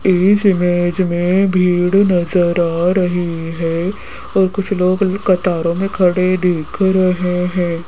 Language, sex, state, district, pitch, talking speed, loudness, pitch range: Hindi, female, Rajasthan, Jaipur, 180 Hz, 130 wpm, -15 LUFS, 175-190 Hz